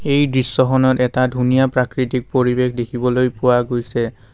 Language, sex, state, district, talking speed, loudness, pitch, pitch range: Assamese, male, Assam, Kamrup Metropolitan, 125 wpm, -17 LUFS, 125 Hz, 125-130 Hz